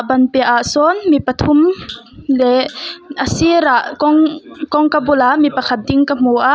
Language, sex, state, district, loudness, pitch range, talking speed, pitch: Mizo, female, Mizoram, Aizawl, -13 LUFS, 255-310 Hz, 155 wpm, 290 Hz